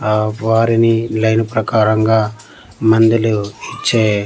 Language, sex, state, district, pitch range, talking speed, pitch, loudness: Telugu, male, Andhra Pradesh, Manyam, 105-115 Hz, 85 wpm, 110 Hz, -14 LUFS